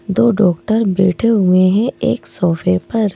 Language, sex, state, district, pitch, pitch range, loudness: Hindi, male, Madhya Pradesh, Bhopal, 195 Hz, 185-220 Hz, -15 LUFS